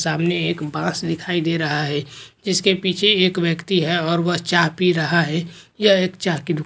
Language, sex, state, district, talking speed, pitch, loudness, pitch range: Hindi, male, West Bengal, Jhargram, 205 wpm, 170 Hz, -19 LUFS, 165-185 Hz